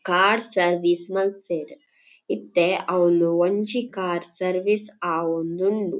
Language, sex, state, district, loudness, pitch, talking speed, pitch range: Tulu, female, Karnataka, Dakshina Kannada, -23 LUFS, 185 Hz, 100 wpm, 175-205 Hz